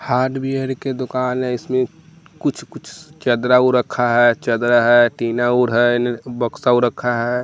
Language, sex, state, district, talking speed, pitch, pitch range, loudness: Hindi, male, Bihar, West Champaran, 170 wpm, 125 Hz, 120-130 Hz, -17 LUFS